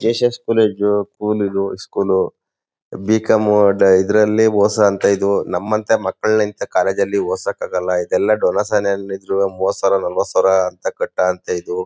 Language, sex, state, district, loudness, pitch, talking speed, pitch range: Kannada, male, Karnataka, Mysore, -17 LUFS, 105 Hz, 145 wpm, 100-120 Hz